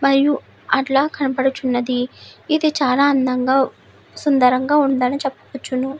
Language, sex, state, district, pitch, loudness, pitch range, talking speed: Telugu, female, Andhra Pradesh, Chittoor, 270 Hz, -18 LUFS, 255-280 Hz, 90 wpm